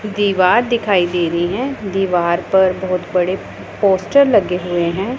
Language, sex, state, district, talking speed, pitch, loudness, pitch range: Hindi, female, Punjab, Pathankot, 150 wpm, 190 Hz, -16 LUFS, 180-205 Hz